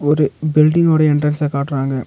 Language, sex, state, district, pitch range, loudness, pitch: Tamil, male, Tamil Nadu, Nilgiris, 140-155 Hz, -15 LUFS, 150 Hz